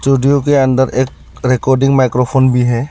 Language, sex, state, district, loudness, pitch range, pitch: Hindi, male, Arunachal Pradesh, Lower Dibang Valley, -13 LUFS, 130-135 Hz, 130 Hz